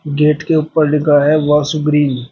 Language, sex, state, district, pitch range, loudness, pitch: Hindi, male, Uttar Pradesh, Shamli, 145-155 Hz, -13 LUFS, 150 Hz